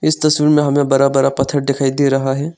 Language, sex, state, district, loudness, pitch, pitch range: Hindi, male, Arunachal Pradesh, Lower Dibang Valley, -15 LUFS, 140 Hz, 135-150 Hz